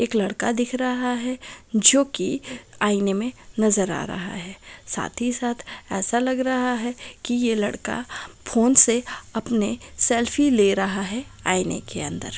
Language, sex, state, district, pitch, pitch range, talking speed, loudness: Hindi, female, Chhattisgarh, Raigarh, 240 Hz, 205-250 Hz, 160 wpm, -22 LUFS